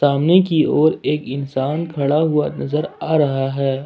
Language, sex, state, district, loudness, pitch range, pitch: Hindi, male, Jharkhand, Ranchi, -18 LUFS, 140-155 Hz, 150 Hz